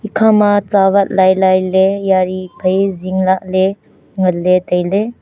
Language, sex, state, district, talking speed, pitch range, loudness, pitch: Wancho, female, Arunachal Pradesh, Longding, 115 wpm, 185-200 Hz, -13 LUFS, 190 Hz